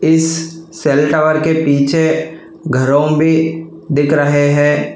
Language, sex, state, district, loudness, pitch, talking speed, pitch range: Hindi, male, Telangana, Hyderabad, -13 LUFS, 155 Hz, 120 wpm, 145-160 Hz